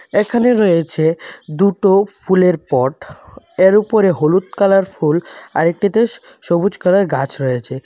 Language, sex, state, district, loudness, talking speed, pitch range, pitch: Bengali, male, Tripura, West Tripura, -15 LUFS, 120 wpm, 155-200 Hz, 185 Hz